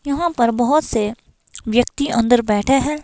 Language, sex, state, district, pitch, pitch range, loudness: Hindi, female, Himachal Pradesh, Shimla, 245 Hz, 235-285 Hz, -18 LUFS